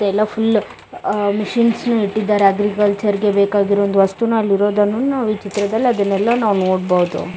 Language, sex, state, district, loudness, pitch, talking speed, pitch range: Kannada, female, Karnataka, Bellary, -16 LUFS, 205 Hz, 145 wpm, 200-220 Hz